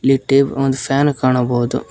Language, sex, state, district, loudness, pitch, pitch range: Kannada, male, Karnataka, Koppal, -16 LUFS, 135 Hz, 130-135 Hz